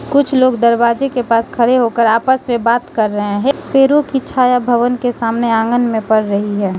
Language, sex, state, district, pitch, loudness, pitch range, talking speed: Hindi, female, Mizoram, Aizawl, 235 Hz, -14 LUFS, 225-255 Hz, 210 wpm